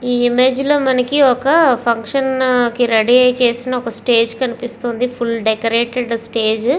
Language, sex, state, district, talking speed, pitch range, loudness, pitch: Telugu, female, Andhra Pradesh, Visakhapatnam, 160 wpm, 235-255 Hz, -15 LUFS, 245 Hz